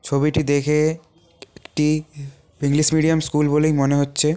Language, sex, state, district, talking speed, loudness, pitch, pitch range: Bengali, male, West Bengal, Kolkata, 125 wpm, -19 LUFS, 150 Hz, 145-155 Hz